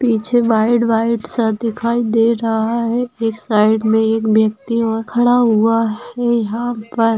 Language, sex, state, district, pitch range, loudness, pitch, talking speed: Hindi, female, Maharashtra, Solapur, 220-235 Hz, -16 LUFS, 225 Hz, 165 wpm